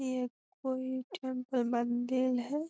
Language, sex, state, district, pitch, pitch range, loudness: Magahi, female, Bihar, Gaya, 255 Hz, 250-260 Hz, -34 LUFS